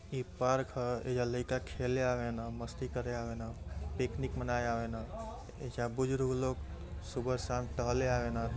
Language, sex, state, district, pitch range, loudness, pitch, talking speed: Hindi, male, Uttar Pradesh, Gorakhpur, 115-125 Hz, -36 LUFS, 125 Hz, 135 wpm